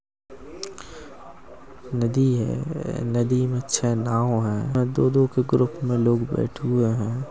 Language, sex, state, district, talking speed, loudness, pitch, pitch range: Hindi, male, Maharashtra, Aurangabad, 125 wpm, -23 LUFS, 125 Hz, 115-130 Hz